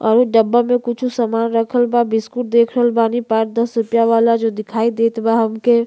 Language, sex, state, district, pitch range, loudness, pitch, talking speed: Bhojpuri, female, Uttar Pradesh, Gorakhpur, 225-240 Hz, -16 LUFS, 230 Hz, 215 wpm